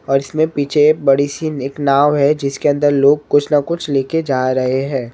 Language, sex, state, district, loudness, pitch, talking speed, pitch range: Hindi, male, Maharashtra, Mumbai Suburban, -15 LUFS, 145 Hz, 220 wpm, 135-150 Hz